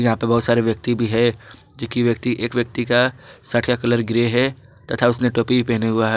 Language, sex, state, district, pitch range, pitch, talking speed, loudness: Hindi, male, Jharkhand, Garhwa, 115-120 Hz, 120 Hz, 235 wpm, -19 LUFS